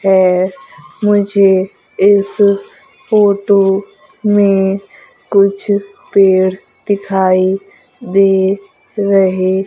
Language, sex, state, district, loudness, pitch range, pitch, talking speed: Hindi, female, Madhya Pradesh, Umaria, -13 LUFS, 190-205 Hz, 200 Hz, 60 wpm